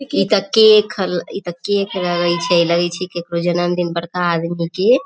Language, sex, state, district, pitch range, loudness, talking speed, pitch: Maithili, female, Bihar, Samastipur, 170-195 Hz, -17 LUFS, 225 wpm, 175 Hz